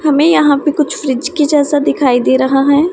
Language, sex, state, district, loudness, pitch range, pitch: Hindi, female, Punjab, Pathankot, -12 LUFS, 270-300 Hz, 290 Hz